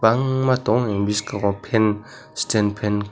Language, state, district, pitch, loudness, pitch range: Kokborok, Tripura, West Tripura, 105 Hz, -21 LUFS, 105-120 Hz